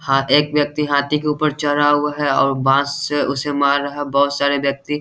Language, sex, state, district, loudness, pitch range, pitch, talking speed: Hindi, male, Bihar, Saharsa, -17 LUFS, 140-150 Hz, 145 Hz, 240 wpm